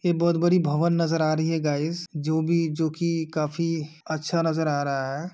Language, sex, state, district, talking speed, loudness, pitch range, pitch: Hindi, male, Uttar Pradesh, Etah, 200 wpm, -25 LUFS, 155-170 Hz, 160 Hz